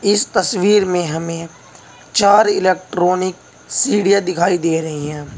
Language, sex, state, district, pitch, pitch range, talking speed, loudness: Hindi, male, Uttar Pradesh, Saharanpur, 180 Hz, 165-200 Hz, 125 wpm, -16 LUFS